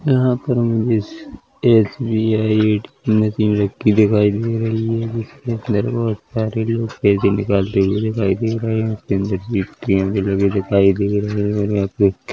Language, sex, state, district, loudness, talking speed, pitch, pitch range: Hindi, male, Chhattisgarh, Korba, -18 LUFS, 165 wpm, 110 Hz, 100-115 Hz